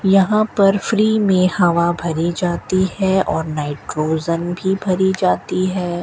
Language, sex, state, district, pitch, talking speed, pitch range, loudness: Hindi, female, Rajasthan, Bikaner, 185 Hz, 140 wpm, 170-195 Hz, -17 LUFS